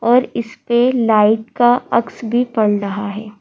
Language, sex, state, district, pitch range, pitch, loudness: Hindi, female, Madhya Pradesh, Bhopal, 215-245 Hz, 230 Hz, -16 LUFS